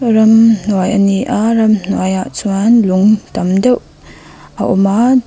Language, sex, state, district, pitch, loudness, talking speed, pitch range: Mizo, female, Mizoram, Aizawl, 215 Hz, -12 LUFS, 135 wpm, 195-225 Hz